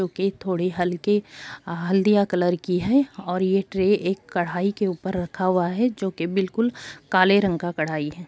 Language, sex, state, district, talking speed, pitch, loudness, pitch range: Hindi, female, Bihar, Gopalganj, 190 wpm, 185 Hz, -23 LUFS, 175-195 Hz